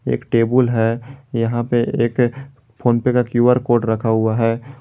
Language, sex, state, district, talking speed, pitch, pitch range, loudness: Hindi, male, Jharkhand, Garhwa, 175 wpm, 120 Hz, 115-125 Hz, -18 LUFS